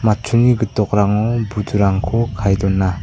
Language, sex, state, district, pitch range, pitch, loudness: Garo, male, Meghalaya, South Garo Hills, 100-115 Hz, 105 Hz, -17 LUFS